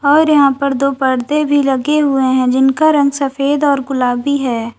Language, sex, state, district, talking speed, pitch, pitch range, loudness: Hindi, female, Uttar Pradesh, Lalitpur, 190 wpm, 275 Hz, 265-290 Hz, -13 LUFS